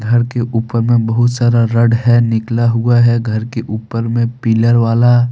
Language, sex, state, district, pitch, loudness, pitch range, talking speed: Hindi, male, Jharkhand, Deoghar, 115 Hz, -13 LUFS, 115-120 Hz, 190 wpm